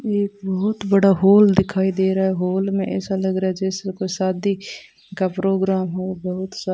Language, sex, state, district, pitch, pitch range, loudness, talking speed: Hindi, female, Rajasthan, Bikaner, 190 Hz, 190-195 Hz, -20 LUFS, 205 wpm